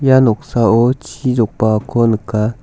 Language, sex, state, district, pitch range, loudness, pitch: Garo, male, Meghalaya, South Garo Hills, 110-125 Hz, -15 LUFS, 115 Hz